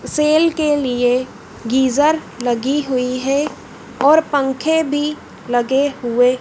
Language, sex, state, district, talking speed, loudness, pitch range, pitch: Hindi, female, Madhya Pradesh, Dhar, 110 wpm, -17 LUFS, 250-300 Hz, 270 Hz